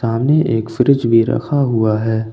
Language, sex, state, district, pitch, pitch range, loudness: Hindi, male, Jharkhand, Ranchi, 115 Hz, 110-135 Hz, -15 LUFS